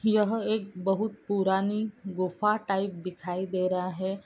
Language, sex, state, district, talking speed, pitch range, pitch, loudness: Hindi, female, Andhra Pradesh, Anantapur, 140 wpm, 185-210 Hz, 195 Hz, -29 LUFS